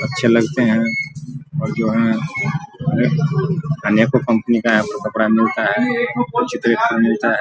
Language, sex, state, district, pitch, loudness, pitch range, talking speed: Hindi, male, Bihar, Vaishali, 120 Hz, -17 LUFS, 115-155 Hz, 130 wpm